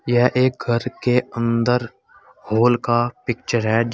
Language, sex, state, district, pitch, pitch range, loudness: Hindi, male, Uttar Pradesh, Saharanpur, 120 Hz, 115-125 Hz, -20 LUFS